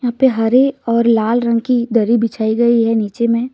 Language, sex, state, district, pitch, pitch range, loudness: Hindi, female, Jharkhand, Deoghar, 235 Hz, 225-240 Hz, -15 LUFS